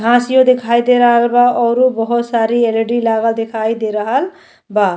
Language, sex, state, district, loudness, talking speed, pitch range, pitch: Bhojpuri, female, Uttar Pradesh, Deoria, -14 LUFS, 170 wpm, 225-245 Hz, 235 Hz